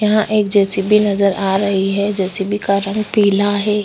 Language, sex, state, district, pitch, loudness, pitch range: Hindi, female, Chhattisgarh, Korba, 200 Hz, -16 LUFS, 195-210 Hz